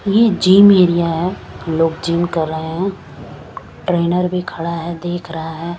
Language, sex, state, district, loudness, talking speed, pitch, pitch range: Hindi, female, Chandigarh, Chandigarh, -16 LUFS, 165 wpm, 170 Hz, 160-180 Hz